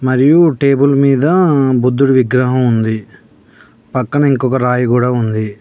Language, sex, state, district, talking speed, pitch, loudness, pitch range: Telugu, male, Telangana, Mahabubabad, 120 wpm, 130 Hz, -12 LUFS, 125-140 Hz